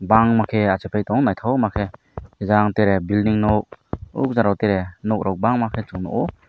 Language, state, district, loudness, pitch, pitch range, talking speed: Kokborok, Tripura, Dhalai, -20 LUFS, 105 Hz, 100-110 Hz, 195 wpm